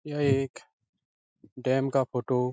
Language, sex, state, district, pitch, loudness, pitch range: Hindi, male, Uttar Pradesh, Etah, 130 Hz, -28 LUFS, 125-135 Hz